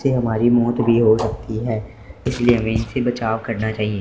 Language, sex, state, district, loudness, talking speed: Hindi, male, Punjab, Fazilka, -19 LUFS, 195 wpm